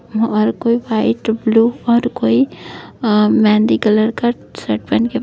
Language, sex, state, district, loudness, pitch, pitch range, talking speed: Hindi, female, Uttar Pradesh, Etah, -15 LUFS, 225 Hz, 215-240 Hz, 150 wpm